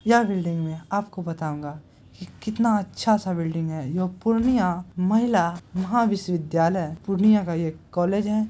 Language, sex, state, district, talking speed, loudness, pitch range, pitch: Hindi, female, Bihar, Purnia, 135 wpm, -24 LUFS, 165-215 Hz, 185 Hz